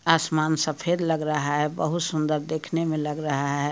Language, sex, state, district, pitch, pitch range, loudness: Hindi, male, Bihar, Muzaffarpur, 155 Hz, 150-160 Hz, -25 LUFS